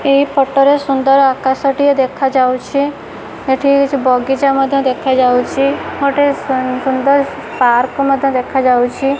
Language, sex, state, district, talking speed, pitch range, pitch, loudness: Odia, female, Odisha, Khordha, 115 wpm, 260-280 Hz, 270 Hz, -13 LUFS